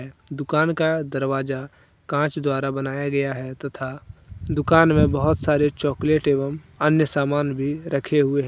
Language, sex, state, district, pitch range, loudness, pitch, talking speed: Hindi, male, Jharkhand, Deoghar, 135-150 Hz, -22 LUFS, 145 Hz, 140 wpm